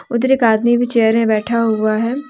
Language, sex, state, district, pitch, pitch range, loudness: Hindi, female, Jharkhand, Deoghar, 230 Hz, 220-240 Hz, -15 LUFS